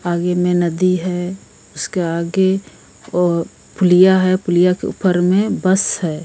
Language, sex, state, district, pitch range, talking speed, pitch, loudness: Hindi, female, Bihar, Darbhanga, 175-185 Hz, 145 wpm, 180 Hz, -16 LUFS